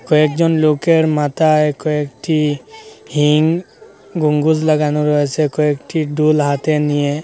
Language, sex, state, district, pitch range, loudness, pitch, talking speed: Bengali, male, Assam, Hailakandi, 150-160 Hz, -15 LUFS, 150 Hz, 100 wpm